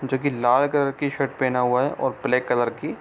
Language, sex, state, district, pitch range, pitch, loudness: Hindi, male, Bihar, East Champaran, 125-140 Hz, 130 Hz, -22 LUFS